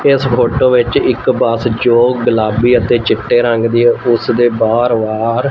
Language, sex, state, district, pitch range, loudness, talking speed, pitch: Punjabi, male, Punjab, Fazilka, 115-120 Hz, -12 LUFS, 165 wpm, 120 Hz